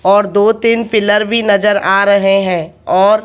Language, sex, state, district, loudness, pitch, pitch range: Hindi, male, Haryana, Jhajjar, -12 LUFS, 205 Hz, 195-215 Hz